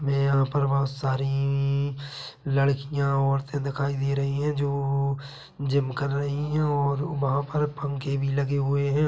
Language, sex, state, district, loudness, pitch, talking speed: Hindi, male, Chhattisgarh, Bilaspur, -26 LUFS, 140 Hz, 165 wpm